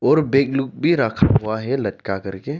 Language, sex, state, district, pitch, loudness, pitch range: Hindi, male, Arunachal Pradesh, Lower Dibang Valley, 130 Hz, -20 LUFS, 105-135 Hz